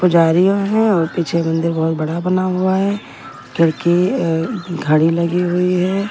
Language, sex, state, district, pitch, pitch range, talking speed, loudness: Hindi, female, Delhi, New Delhi, 175 Hz, 165-185 Hz, 165 wpm, -16 LUFS